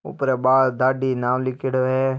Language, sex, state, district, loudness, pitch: Marwari, male, Rajasthan, Nagaur, -20 LUFS, 130 Hz